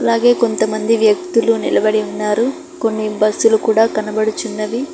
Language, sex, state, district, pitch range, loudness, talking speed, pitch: Telugu, female, Telangana, Hyderabad, 215-230 Hz, -16 LUFS, 110 wpm, 220 Hz